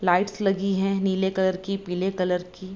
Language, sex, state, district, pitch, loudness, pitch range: Hindi, female, Bihar, Begusarai, 190 Hz, -25 LUFS, 185-195 Hz